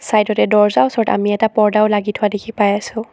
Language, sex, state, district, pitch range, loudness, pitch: Assamese, female, Assam, Sonitpur, 210-220 Hz, -15 LUFS, 210 Hz